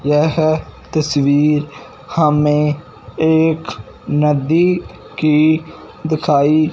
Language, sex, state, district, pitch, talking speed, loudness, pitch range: Hindi, male, Punjab, Fazilka, 150 Hz, 60 wpm, -15 LUFS, 150-160 Hz